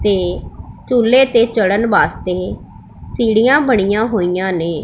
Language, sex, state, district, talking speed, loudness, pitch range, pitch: Punjabi, female, Punjab, Pathankot, 110 wpm, -14 LUFS, 185-235 Hz, 215 Hz